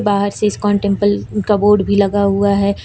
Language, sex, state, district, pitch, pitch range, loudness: Hindi, female, Uttar Pradesh, Lucknow, 200 Hz, 200-205 Hz, -15 LUFS